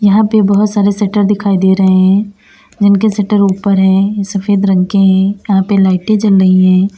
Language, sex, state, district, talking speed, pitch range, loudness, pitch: Hindi, female, Uttar Pradesh, Lalitpur, 200 wpm, 190-205 Hz, -11 LUFS, 200 Hz